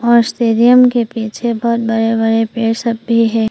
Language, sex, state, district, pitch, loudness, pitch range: Hindi, female, Arunachal Pradesh, Papum Pare, 230 Hz, -13 LUFS, 225-235 Hz